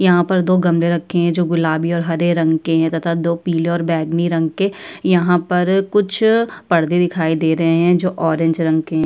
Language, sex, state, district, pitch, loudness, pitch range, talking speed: Hindi, female, Uttar Pradesh, Budaun, 170 Hz, -16 LUFS, 165-180 Hz, 220 wpm